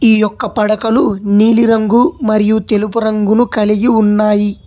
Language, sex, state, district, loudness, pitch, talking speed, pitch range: Telugu, male, Telangana, Hyderabad, -12 LUFS, 215 Hz, 115 wpm, 210-230 Hz